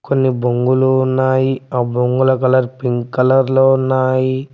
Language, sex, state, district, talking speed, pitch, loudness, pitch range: Telugu, male, Telangana, Mahabubabad, 130 wpm, 130 Hz, -15 LUFS, 125-130 Hz